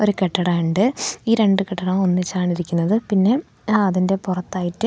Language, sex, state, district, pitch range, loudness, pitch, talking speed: Malayalam, female, Kerala, Thiruvananthapuram, 180-210 Hz, -20 LUFS, 190 Hz, 125 wpm